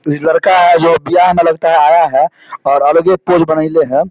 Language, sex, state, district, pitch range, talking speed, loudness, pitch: Hindi, male, Bihar, Samastipur, 155-175 Hz, 265 wpm, -10 LUFS, 165 Hz